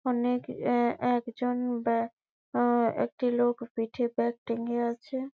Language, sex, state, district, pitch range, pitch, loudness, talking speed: Bengali, female, West Bengal, Malda, 235-245 Hz, 240 Hz, -29 LUFS, 135 wpm